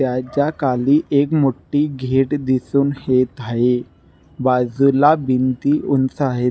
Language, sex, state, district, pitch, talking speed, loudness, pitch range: Marathi, male, Maharashtra, Nagpur, 130 Hz, 110 wpm, -18 LUFS, 125-140 Hz